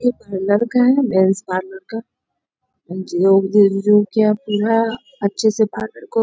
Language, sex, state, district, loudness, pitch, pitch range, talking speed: Hindi, female, Bihar, Bhagalpur, -17 LUFS, 210 Hz, 195-225 Hz, 145 wpm